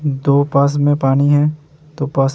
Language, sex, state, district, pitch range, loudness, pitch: Hindi, male, Bihar, Vaishali, 140-150 Hz, -15 LUFS, 145 Hz